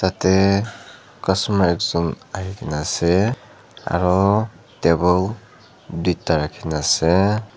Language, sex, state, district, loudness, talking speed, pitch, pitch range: Nagamese, male, Nagaland, Dimapur, -19 LUFS, 80 wpm, 95 Hz, 85-100 Hz